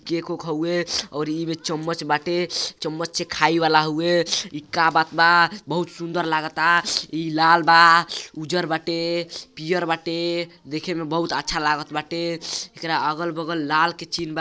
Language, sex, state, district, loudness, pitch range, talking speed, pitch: Bhojpuri, male, Uttar Pradesh, Gorakhpur, -21 LUFS, 160-170 Hz, 160 wpm, 165 Hz